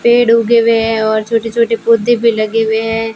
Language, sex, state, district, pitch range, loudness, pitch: Hindi, female, Rajasthan, Bikaner, 225-230 Hz, -12 LUFS, 230 Hz